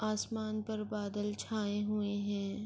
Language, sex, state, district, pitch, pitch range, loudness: Urdu, female, Andhra Pradesh, Anantapur, 210 Hz, 205-215 Hz, -37 LUFS